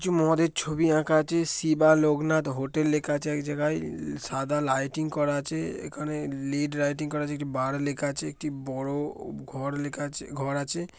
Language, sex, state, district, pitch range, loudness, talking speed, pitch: Bengali, male, West Bengal, Dakshin Dinajpur, 140-155 Hz, -27 LUFS, 180 wpm, 145 Hz